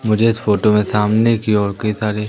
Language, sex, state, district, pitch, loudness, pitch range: Hindi, female, Madhya Pradesh, Umaria, 105 Hz, -16 LUFS, 105-110 Hz